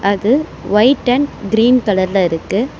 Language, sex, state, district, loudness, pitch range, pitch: Tamil, female, Tamil Nadu, Chennai, -14 LUFS, 200-250 Hz, 215 Hz